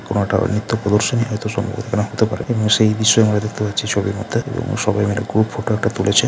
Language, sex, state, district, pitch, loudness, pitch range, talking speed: Bengali, male, West Bengal, Jhargram, 110 Hz, -18 LUFS, 105-115 Hz, 220 wpm